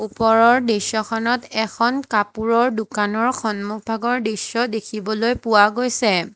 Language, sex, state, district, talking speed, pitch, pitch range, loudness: Assamese, female, Assam, Hailakandi, 95 wpm, 225 Hz, 215-235 Hz, -19 LUFS